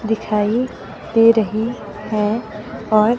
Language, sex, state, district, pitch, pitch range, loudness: Hindi, female, Himachal Pradesh, Shimla, 220 Hz, 210-225 Hz, -18 LUFS